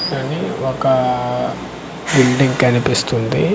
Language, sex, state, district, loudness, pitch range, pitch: Telugu, male, Andhra Pradesh, Manyam, -16 LUFS, 125-135 Hz, 130 Hz